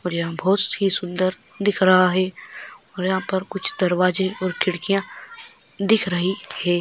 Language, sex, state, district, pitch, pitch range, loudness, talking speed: Hindi, male, Maharashtra, Solapur, 185 Hz, 185-195 Hz, -21 LUFS, 160 wpm